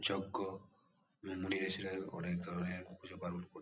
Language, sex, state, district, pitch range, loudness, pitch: Bengali, male, West Bengal, Kolkata, 90-95 Hz, -42 LUFS, 95 Hz